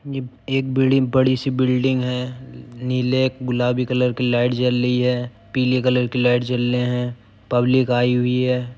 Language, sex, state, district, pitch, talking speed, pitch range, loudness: Hindi, male, Uttar Pradesh, Jyotiba Phule Nagar, 125 Hz, 175 wpm, 125-130 Hz, -20 LUFS